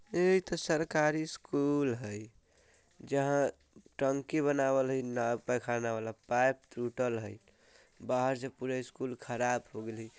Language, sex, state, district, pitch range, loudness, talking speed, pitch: Bajjika, male, Bihar, Vaishali, 120-140 Hz, -33 LUFS, 130 wpm, 130 Hz